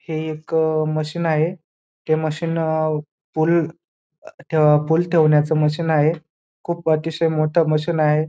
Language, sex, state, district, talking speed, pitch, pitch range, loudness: Marathi, male, Maharashtra, Dhule, 145 wpm, 160 Hz, 155-165 Hz, -20 LUFS